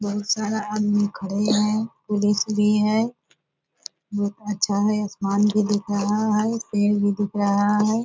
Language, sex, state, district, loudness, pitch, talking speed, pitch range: Hindi, female, Bihar, Purnia, -22 LUFS, 205 Hz, 155 wpm, 205-210 Hz